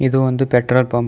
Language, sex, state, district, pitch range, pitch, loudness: Kannada, male, Karnataka, Bidar, 125-130 Hz, 130 Hz, -16 LUFS